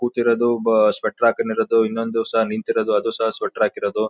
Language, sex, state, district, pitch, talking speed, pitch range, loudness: Kannada, male, Karnataka, Mysore, 115 Hz, 190 wpm, 110-115 Hz, -20 LUFS